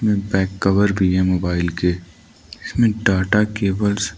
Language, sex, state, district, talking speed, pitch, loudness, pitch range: Hindi, male, Arunachal Pradesh, Lower Dibang Valley, 145 wpm, 95 Hz, -19 LUFS, 90-105 Hz